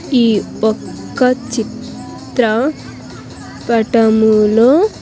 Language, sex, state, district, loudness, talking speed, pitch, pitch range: Telugu, female, Andhra Pradesh, Sri Satya Sai, -14 LUFS, 50 wpm, 230 Hz, 220-250 Hz